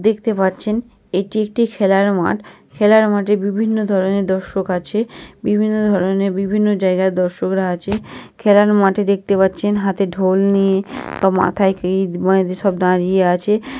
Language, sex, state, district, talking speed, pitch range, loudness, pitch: Bengali, female, West Bengal, North 24 Parganas, 140 wpm, 190-210 Hz, -17 LUFS, 195 Hz